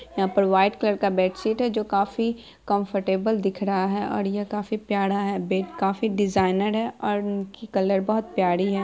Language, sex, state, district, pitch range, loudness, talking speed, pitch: Hindi, female, Bihar, Araria, 195-210 Hz, -24 LUFS, 195 wpm, 200 Hz